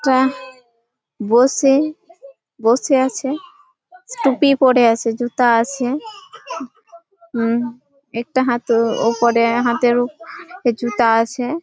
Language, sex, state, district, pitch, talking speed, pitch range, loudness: Bengali, female, West Bengal, Malda, 260 Hz, 85 wpm, 235-300 Hz, -17 LUFS